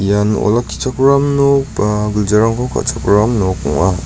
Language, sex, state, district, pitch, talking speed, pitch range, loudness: Garo, male, Meghalaya, North Garo Hills, 105 Hz, 120 wpm, 100-130 Hz, -14 LUFS